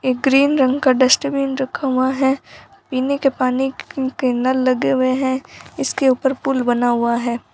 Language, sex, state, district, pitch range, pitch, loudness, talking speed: Hindi, female, Rajasthan, Bikaner, 255-270 Hz, 265 Hz, -18 LUFS, 175 wpm